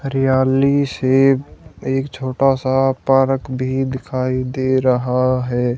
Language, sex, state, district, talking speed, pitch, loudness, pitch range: Hindi, male, Haryana, Charkhi Dadri, 115 wpm, 130 Hz, -17 LUFS, 130-135 Hz